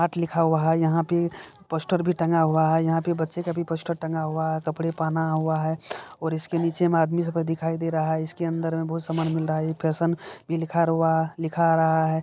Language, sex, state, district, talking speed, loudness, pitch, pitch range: Maithili, male, Bihar, Supaul, 250 wpm, -25 LUFS, 165 Hz, 160-165 Hz